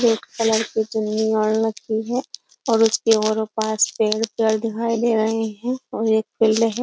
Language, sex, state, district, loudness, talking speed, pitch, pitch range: Hindi, female, Uttar Pradesh, Jyotiba Phule Nagar, -21 LUFS, 185 wpm, 220 Hz, 220-225 Hz